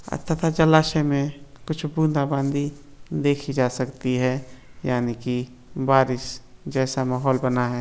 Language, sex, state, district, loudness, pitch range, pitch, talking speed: Hindi, male, Bihar, Saran, -23 LUFS, 125-145 Hz, 135 Hz, 125 wpm